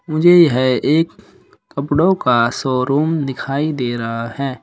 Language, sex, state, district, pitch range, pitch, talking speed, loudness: Hindi, male, Uttar Pradesh, Shamli, 125-155 Hz, 140 Hz, 130 wpm, -16 LUFS